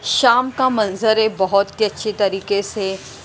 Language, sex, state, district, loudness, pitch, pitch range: Hindi, female, Punjab, Pathankot, -18 LUFS, 210 Hz, 200-220 Hz